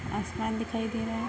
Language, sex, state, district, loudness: Hindi, female, Uttar Pradesh, Budaun, -32 LUFS